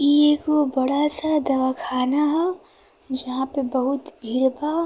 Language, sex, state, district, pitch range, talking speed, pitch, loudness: Bhojpuri, female, Uttar Pradesh, Varanasi, 260-300 Hz, 135 wpm, 285 Hz, -19 LUFS